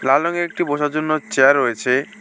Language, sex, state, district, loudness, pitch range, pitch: Bengali, male, West Bengal, Alipurduar, -18 LUFS, 130-155 Hz, 150 Hz